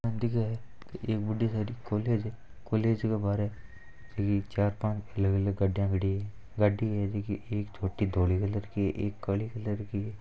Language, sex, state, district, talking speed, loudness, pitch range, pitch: Marwari, male, Rajasthan, Nagaur, 190 wpm, -31 LUFS, 100-110 Hz, 105 Hz